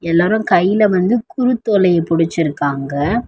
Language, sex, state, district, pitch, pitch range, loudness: Tamil, female, Tamil Nadu, Chennai, 180 Hz, 165-220 Hz, -15 LUFS